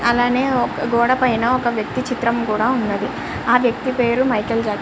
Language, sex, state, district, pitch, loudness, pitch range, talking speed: Telugu, male, Andhra Pradesh, Srikakulam, 240 Hz, -18 LUFS, 230-255 Hz, 175 wpm